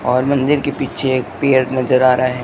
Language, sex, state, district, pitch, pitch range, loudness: Hindi, male, Rajasthan, Bikaner, 130 Hz, 130-135 Hz, -16 LUFS